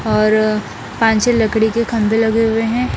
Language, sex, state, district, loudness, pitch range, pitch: Hindi, female, Bihar, Patna, -15 LUFS, 215-225 Hz, 225 Hz